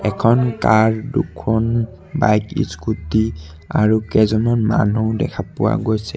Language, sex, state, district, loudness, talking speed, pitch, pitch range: Assamese, male, Assam, Sonitpur, -18 LUFS, 105 wpm, 110 Hz, 105-115 Hz